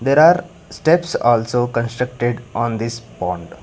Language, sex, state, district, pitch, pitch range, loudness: English, male, Karnataka, Bangalore, 120 Hz, 115-125 Hz, -18 LUFS